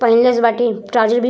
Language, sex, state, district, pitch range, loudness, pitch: Bhojpuri, female, Uttar Pradesh, Gorakhpur, 230-240 Hz, -15 LUFS, 235 Hz